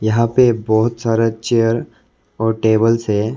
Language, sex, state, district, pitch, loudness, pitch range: Hindi, male, Arunachal Pradesh, Lower Dibang Valley, 115 Hz, -16 LUFS, 110-115 Hz